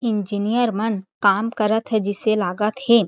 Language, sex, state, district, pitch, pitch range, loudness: Chhattisgarhi, female, Chhattisgarh, Jashpur, 215 Hz, 205-225 Hz, -21 LUFS